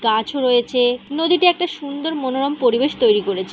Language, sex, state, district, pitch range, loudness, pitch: Bengali, female, West Bengal, Malda, 235-295 Hz, -18 LUFS, 260 Hz